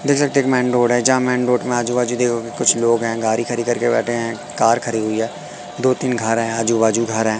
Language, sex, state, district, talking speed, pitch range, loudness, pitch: Hindi, male, Madhya Pradesh, Katni, 275 wpm, 115-125 Hz, -18 LUFS, 120 Hz